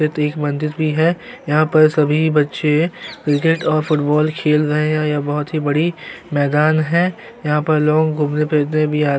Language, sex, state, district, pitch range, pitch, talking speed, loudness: Hindi, male, Uttarakhand, Tehri Garhwal, 150-155 Hz, 155 Hz, 195 wpm, -17 LUFS